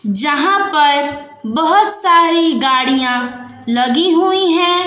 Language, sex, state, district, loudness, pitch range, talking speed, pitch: Hindi, female, Bihar, West Champaran, -13 LUFS, 255-350 Hz, 100 wpm, 290 Hz